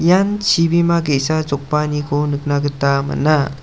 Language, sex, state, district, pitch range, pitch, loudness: Garo, male, Meghalaya, South Garo Hills, 140-165 Hz, 150 Hz, -17 LUFS